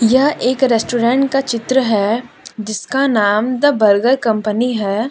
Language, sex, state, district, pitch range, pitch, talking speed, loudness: Hindi, female, Jharkhand, Deoghar, 215-265 Hz, 235 Hz, 140 wpm, -15 LUFS